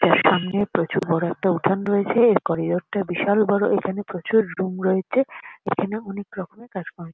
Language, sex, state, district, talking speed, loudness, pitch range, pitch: Bengali, female, West Bengal, Kolkata, 175 wpm, -22 LUFS, 175-205 Hz, 190 Hz